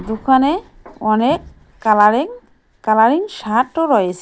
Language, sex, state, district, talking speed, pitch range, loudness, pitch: Bengali, female, West Bengal, Cooch Behar, 85 wpm, 215-310 Hz, -16 LUFS, 245 Hz